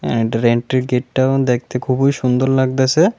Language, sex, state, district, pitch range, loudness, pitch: Bengali, male, Tripura, West Tripura, 125-135 Hz, -16 LUFS, 130 Hz